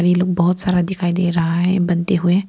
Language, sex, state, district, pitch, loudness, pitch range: Hindi, female, Arunachal Pradesh, Papum Pare, 180 Hz, -17 LUFS, 175-180 Hz